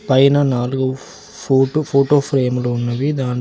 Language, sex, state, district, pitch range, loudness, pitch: Telugu, male, Telangana, Hyderabad, 125-140 Hz, -17 LUFS, 135 Hz